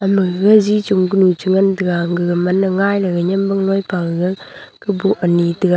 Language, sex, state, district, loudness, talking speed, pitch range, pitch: Wancho, female, Arunachal Pradesh, Longding, -15 LUFS, 195 wpm, 180-195 Hz, 190 Hz